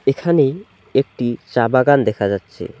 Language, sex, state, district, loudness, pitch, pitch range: Bengali, male, West Bengal, Alipurduar, -17 LUFS, 130 Hz, 115-140 Hz